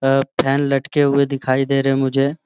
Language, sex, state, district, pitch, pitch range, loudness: Hindi, male, Jharkhand, Sahebganj, 135 Hz, 135-140 Hz, -18 LUFS